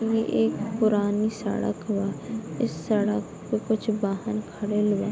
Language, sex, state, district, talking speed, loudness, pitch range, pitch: Bhojpuri, female, Bihar, Gopalganj, 165 wpm, -26 LUFS, 205-220 Hz, 210 Hz